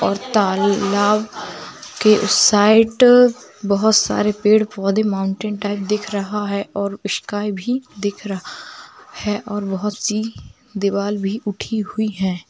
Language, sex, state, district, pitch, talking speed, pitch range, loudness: Hindi, female, Bihar, Darbhanga, 205 Hz, 135 wpm, 200-215 Hz, -18 LUFS